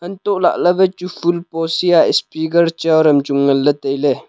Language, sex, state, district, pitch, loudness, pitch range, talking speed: Wancho, male, Arunachal Pradesh, Longding, 165 Hz, -15 LUFS, 145-175 Hz, 195 wpm